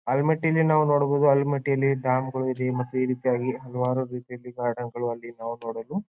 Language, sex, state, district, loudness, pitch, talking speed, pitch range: Kannada, male, Karnataka, Bijapur, -25 LUFS, 130 Hz, 140 wpm, 125-140 Hz